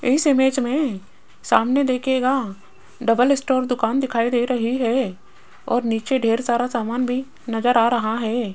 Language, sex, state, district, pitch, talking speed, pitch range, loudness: Hindi, female, Rajasthan, Jaipur, 245 Hz, 155 wpm, 230-260 Hz, -20 LUFS